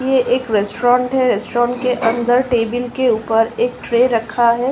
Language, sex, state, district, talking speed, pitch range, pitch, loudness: Hindi, female, Uttar Pradesh, Ghazipur, 180 wpm, 230-250 Hz, 240 Hz, -16 LUFS